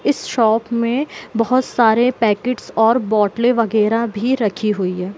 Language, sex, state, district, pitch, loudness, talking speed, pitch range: Hindi, female, Bihar, Gopalganj, 230 Hz, -17 LUFS, 150 wpm, 215-240 Hz